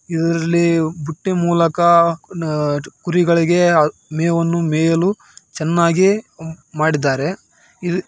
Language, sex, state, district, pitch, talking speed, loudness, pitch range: Kannada, male, Karnataka, Raichur, 170 Hz, 65 wpm, -17 LUFS, 160-175 Hz